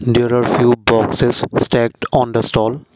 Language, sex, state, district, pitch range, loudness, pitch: English, male, Assam, Kamrup Metropolitan, 115-120 Hz, -15 LUFS, 120 Hz